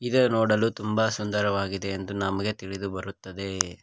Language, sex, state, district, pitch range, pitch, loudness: Kannada, male, Karnataka, Koppal, 95-105 Hz, 100 Hz, -27 LUFS